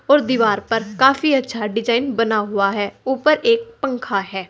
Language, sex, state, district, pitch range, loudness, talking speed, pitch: Hindi, female, Uttar Pradesh, Saharanpur, 210-275 Hz, -18 LUFS, 175 wpm, 235 Hz